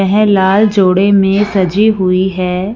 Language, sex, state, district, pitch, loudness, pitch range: Hindi, female, Punjab, Fazilka, 195 Hz, -11 LUFS, 185-205 Hz